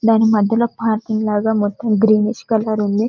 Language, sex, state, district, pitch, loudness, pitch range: Telugu, female, Telangana, Karimnagar, 220 Hz, -17 LUFS, 215-225 Hz